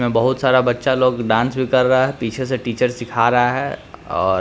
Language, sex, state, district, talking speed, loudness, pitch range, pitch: Hindi, male, Bihar, Patna, 230 wpm, -18 LUFS, 120-130 Hz, 125 Hz